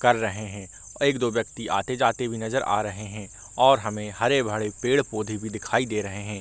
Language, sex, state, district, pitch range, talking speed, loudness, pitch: Hindi, male, Bihar, Kishanganj, 105-120 Hz, 235 wpm, -25 LUFS, 110 Hz